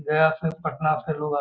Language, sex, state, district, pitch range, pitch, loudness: Magahi, male, Bihar, Gaya, 150-160 Hz, 155 Hz, -24 LUFS